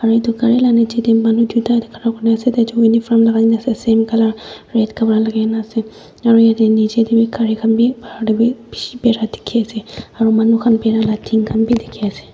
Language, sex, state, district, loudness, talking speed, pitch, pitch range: Nagamese, female, Nagaland, Dimapur, -15 LUFS, 225 wpm, 225 Hz, 220-230 Hz